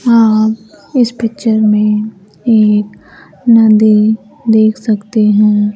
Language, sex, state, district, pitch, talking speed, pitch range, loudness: Hindi, female, Bihar, Kaimur, 215 Hz, 95 wpm, 210-225 Hz, -11 LUFS